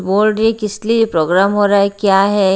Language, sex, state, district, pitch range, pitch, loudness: Hindi, female, Haryana, Rohtak, 195-215 Hz, 200 Hz, -14 LUFS